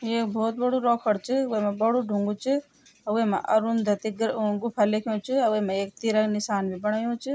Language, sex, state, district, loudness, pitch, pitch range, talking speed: Garhwali, female, Uttarakhand, Tehri Garhwal, -26 LUFS, 220 Hz, 210-235 Hz, 170 wpm